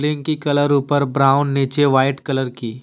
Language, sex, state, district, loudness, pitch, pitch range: Hindi, male, Jharkhand, Deoghar, -17 LUFS, 140 Hz, 135-145 Hz